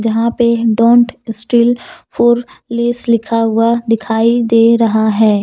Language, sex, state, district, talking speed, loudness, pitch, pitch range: Hindi, female, Jharkhand, Deoghar, 135 wpm, -13 LUFS, 230 Hz, 225-240 Hz